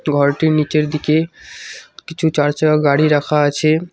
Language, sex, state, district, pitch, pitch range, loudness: Bengali, male, West Bengal, Cooch Behar, 155 Hz, 145-160 Hz, -16 LUFS